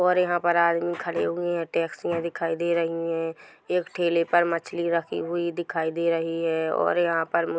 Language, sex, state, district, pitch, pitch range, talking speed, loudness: Hindi, female, Chhattisgarh, Korba, 170 Hz, 165-175 Hz, 200 wpm, -25 LUFS